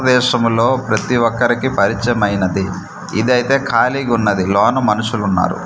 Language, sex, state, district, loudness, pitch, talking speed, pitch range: Telugu, male, Andhra Pradesh, Manyam, -15 LUFS, 115 Hz, 85 wpm, 100-125 Hz